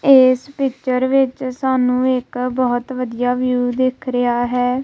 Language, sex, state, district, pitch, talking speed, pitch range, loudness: Punjabi, female, Punjab, Kapurthala, 255 Hz, 135 wpm, 250-260 Hz, -18 LUFS